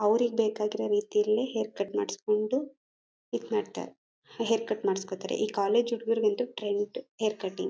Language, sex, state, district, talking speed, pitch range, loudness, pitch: Kannada, female, Karnataka, Mysore, 140 wpm, 205-240 Hz, -30 LUFS, 215 Hz